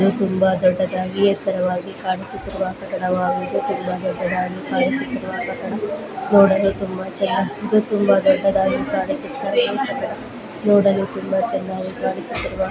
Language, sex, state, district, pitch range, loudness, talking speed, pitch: Kannada, female, Karnataka, Belgaum, 185-205 Hz, -20 LUFS, 90 wpm, 195 Hz